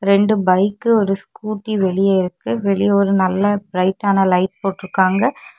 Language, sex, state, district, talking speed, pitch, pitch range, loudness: Tamil, female, Tamil Nadu, Kanyakumari, 130 wpm, 195 Hz, 190-205 Hz, -17 LUFS